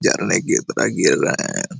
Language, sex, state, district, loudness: Hindi, male, Jharkhand, Jamtara, -18 LUFS